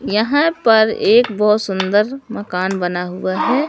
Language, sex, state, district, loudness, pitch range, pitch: Hindi, male, Madhya Pradesh, Katni, -16 LUFS, 185-240 Hz, 210 Hz